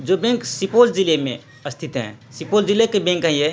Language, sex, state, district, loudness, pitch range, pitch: Hindi, male, Bihar, Supaul, -18 LUFS, 140-205 Hz, 165 Hz